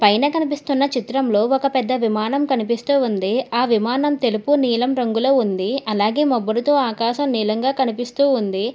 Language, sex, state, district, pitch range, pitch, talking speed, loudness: Telugu, female, Telangana, Hyderabad, 225-275 Hz, 250 Hz, 135 wpm, -19 LUFS